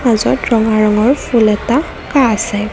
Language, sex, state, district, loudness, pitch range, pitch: Assamese, female, Assam, Kamrup Metropolitan, -13 LUFS, 215-255 Hz, 230 Hz